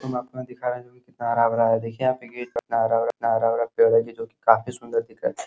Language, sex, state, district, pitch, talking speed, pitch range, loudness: Hindi, male, Uttar Pradesh, Hamirpur, 125 Hz, 220 wpm, 115-130 Hz, -23 LUFS